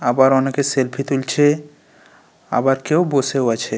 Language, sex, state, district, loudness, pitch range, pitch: Bengali, male, West Bengal, North 24 Parganas, -18 LUFS, 130-145 Hz, 135 Hz